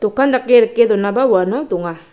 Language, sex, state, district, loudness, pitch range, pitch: Garo, female, Meghalaya, South Garo Hills, -14 LUFS, 185-250 Hz, 215 Hz